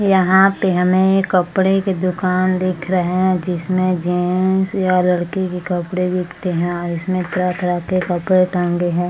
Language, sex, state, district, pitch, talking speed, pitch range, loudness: Hindi, female, Bihar, Madhepura, 180 Hz, 165 wpm, 180-185 Hz, -17 LUFS